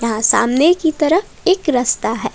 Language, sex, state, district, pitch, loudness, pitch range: Hindi, female, Jharkhand, Palamu, 280 Hz, -15 LUFS, 230-330 Hz